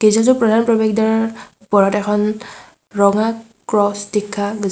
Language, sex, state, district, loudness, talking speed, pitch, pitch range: Assamese, female, Assam, Sonitpur, -16 LUFS, 115 wpm, 215 Hz, 205-225 Hz